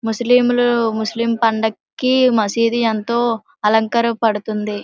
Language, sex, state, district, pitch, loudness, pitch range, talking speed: Telugu, female, Andhra Pradesh, Srikakulam, 230 Hz, -17 LUFS, 220-240 Hz, 75 wpm